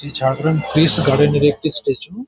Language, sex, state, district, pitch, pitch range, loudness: Bengali, male, West Bengal, Jhargram, 145 Hz, 145-160 Hz, -16 LUFS